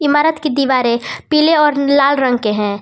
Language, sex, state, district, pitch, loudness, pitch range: Hindi, female, Jharkhand, Palamu, 280 Hz, -14 LUFS, 245-300 Hz